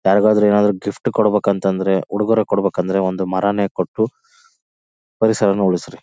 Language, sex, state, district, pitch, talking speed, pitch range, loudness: Kannada, male, Karnataka, Bellary, 100 Hz, 110 wpm, 95-105 Hz, -17 LUFS